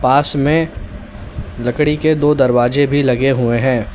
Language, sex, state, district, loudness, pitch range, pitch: Hindi, male, Uttar Pradesh, Lalitpur, -14 LUFS, 120-145 Hz, 130 Hz